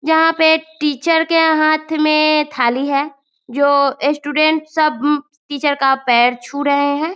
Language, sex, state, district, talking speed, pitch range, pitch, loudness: Hindi, female, Bihar, Muzaffarpur, 160 wpm, 280-315 Hz, 295 Hz, -15 LUFS